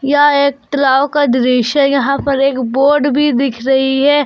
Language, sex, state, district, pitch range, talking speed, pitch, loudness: Hindi, female, Jharkhand, Garhwa, 265-285 Hz, 195 wpm, 275 Hz, -13 LUFS